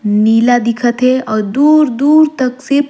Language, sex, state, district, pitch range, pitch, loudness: Surgujia, female, Chhattisgarh, Sarguja, 230-280 Hz, 255 Hz, -11 LUFS